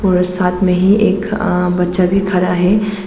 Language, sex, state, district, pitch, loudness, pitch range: Hindi, female, Arunachal Pradesh, Papum Pare, 185 Hz, -14 LUFS, 180-200 Hz